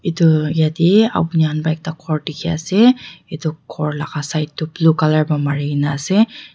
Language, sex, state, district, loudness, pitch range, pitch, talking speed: Nagamese, female, Nagaland, Dimapur, -17 LUFS, 155-170 Hz, 155 Hz, 155 wpm